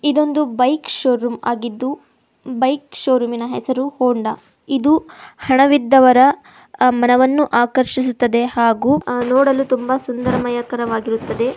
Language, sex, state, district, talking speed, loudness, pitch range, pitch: Kannada, female, Karnataka, Chamarajanagar, 90 wpm, -16 LUFS, 240-270 Hz, 255 Hz